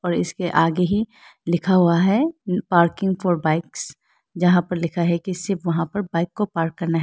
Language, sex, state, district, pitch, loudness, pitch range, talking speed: Hindi, female, Arunachal Pradesh, Lower Dibang Valley, 175 Hz, -21 LUFS, 170-190 Hz, 195 wpm